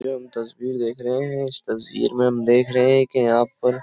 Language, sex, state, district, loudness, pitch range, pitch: Hindi, male, Uttar Pradesh, Jyotiba Phule Nagar, -20 LUFS, 120-130 Hz, 125 Hz